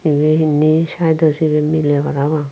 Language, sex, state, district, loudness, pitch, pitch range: Chakma, female, Tripura, Unakoti, -14 LUFS, 155 Hz, 150-155 Hz